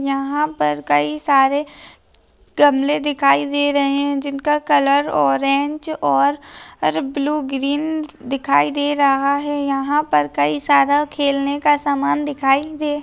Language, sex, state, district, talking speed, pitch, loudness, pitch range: Hindi, female, Maharashtra, Pune, 130 wpm, 280 Hz, -18 LUFS, 275-290 Hz